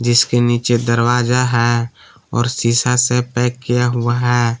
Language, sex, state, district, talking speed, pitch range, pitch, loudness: Hindi, male, Jharkhand, Palamu, 145 wpm, 120-125 Hz, 120 Hz, -16 LUFS